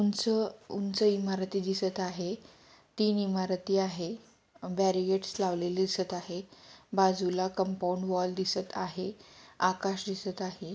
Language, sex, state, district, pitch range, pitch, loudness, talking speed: Marathi, female, Maharashtra, Pune, 185-195 Hz, 190 Hz, -31 LUFS, 115 wpm